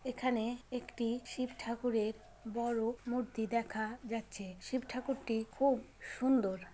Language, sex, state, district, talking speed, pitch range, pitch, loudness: Bengali, female, West Bengal, Jalpaiguri, 125 wpm, 225-255 Hz, 235 Hz, -37 LUFS